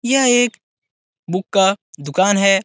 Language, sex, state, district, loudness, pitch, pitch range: Hindi, male, Uttar Pradesh, Etah, -16 LUFS, 195 Hz, 185-240 Hz